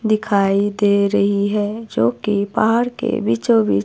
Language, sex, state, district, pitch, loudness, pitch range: Hindi, female, Himachal Pradesh, Shimla, 200 Hz, -18 LUFS, 195-215 Hz